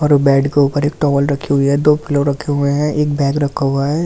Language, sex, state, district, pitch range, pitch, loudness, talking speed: Hindi, male, Delhi, New Delhi, 140-150 Hz, 145 Hz, -15 LUFS, 310 wpm